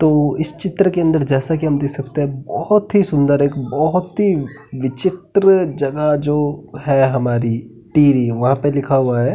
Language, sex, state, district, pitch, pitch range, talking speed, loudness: Hindi, male, Uttarakhand, Tehri Garhwal, 145 Hz, 135-160 Hz, 180 wpm, -17 LUFS